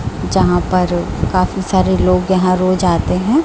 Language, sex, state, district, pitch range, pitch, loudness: Hindi, female, Chhattisgarh, Raipur, 175-185 Hz, 185 Hz, -15 LUFS